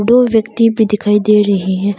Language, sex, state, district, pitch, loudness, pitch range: Hindi, female, Arunachal Pradesh, Longding, 210 Hz, -12 LUFS, 205-225 Hz